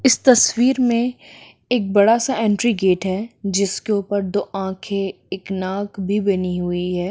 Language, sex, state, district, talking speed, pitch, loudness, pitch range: Hindi, female, Jharkhand, Jamtara, 170 wpm, 200 Hz, -19 LUFS, 190-230 Hz